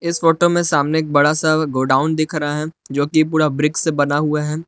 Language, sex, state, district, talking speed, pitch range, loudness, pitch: Hindi, male, Jharkhand, Palamu, 220 wpm, 145-160 Hz, -17 LUFS, 155 Hz